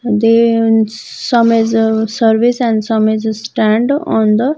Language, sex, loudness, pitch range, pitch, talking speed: English, female, -13 LUFS, 220-230 Hz, 225 Hz, 185 wpm